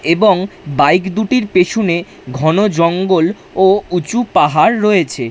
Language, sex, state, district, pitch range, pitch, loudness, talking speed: Bengali, male, West Bengal, Dakshin Dinajpur, 165-205 Hz, 185 Hz, -13 LUFS, 115 wpm